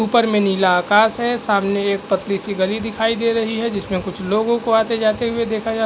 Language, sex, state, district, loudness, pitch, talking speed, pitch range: Hindi, male, Uttar Pradesh, Varanasi, -18 LUFS, 220 Hz, 245 wpm, 200-225 Hz